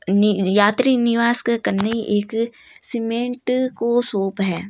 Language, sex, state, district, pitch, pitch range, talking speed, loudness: Marwari, female, Rajasthan, Nagaur, 230 Hz, 205-240 Hz, 125 wpm, -19 LUFS